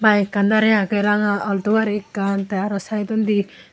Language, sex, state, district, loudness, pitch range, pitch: Chakma, female, Tripura, Unakoti, -19 LUFS, 200-215 Hz, 205 Hz